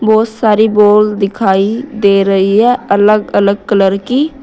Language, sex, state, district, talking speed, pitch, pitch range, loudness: Hindi, female, Uttar Pradesh, Saharanpur, 150 wpm, 210 Hz, 200-220 Hz, -11 LUFS